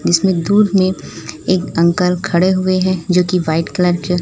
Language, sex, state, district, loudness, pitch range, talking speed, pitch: Hindi, female, Chhattisgarh, Raipur, -15 LUFS, 175-185 Hz, 185 wpm, 180 Hz